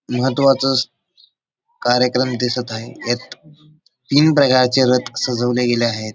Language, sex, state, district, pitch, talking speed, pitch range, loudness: Marathi, male, Maharashtra, Dhule, 125 Hz, 105 wpm, 120-135 Hz, -17 LUFS